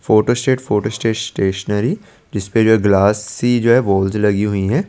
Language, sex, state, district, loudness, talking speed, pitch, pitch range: Hindi, male, Chandigarh, Chandigarh, -16 LUFS, 170 wpm, 105 Hz, 100-120 Hz